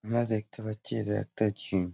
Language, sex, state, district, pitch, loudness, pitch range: Bengali, male, West Bengal, Jhargram, 110 Hz, -32 LUFS, 105-110 Hz